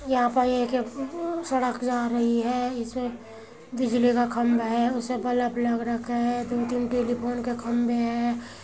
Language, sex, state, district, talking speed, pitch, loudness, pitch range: Hindi, female, Uttar Pradesh, Muzaffarnagar, 165 wpm, 245 Hz, -26 LUFS, 235-250 Hz